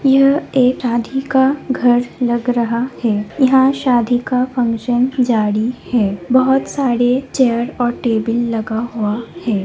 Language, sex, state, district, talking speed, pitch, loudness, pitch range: Hindi, female, Bihar, Lakhisarai, 135 wpm, 245 Hz, -16 LUFS, 230-260 Hz